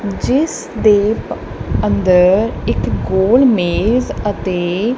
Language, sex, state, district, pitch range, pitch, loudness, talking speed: Punjabi, female, Punjab, Kapurthala, 180-225 Hz, 200 Hz, -15 LUFS, 85 wpm